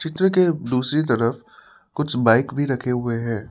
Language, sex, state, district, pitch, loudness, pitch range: Hindi, male, Assam, Sonitpur, 125 Hz, -21 LUFS, 120-150 Hz